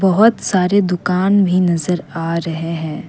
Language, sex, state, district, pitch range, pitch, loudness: Hindi, female, Assam, Kamrup Metropolitan, 165-190 Hz, 180 Hz, -16 LUFS